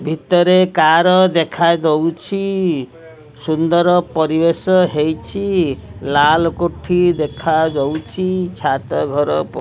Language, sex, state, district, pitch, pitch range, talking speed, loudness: Odia, male, Odisha, Khordha, 165 Hz, 155-180 Hz, 75 wpm, -16 LUFS